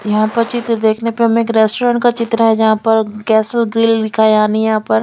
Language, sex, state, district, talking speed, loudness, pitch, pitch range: Hindi, female, Chandigarh, Chandigarh, 225 wpm, -14 LUFS, 225 Hz, 220-230 Hz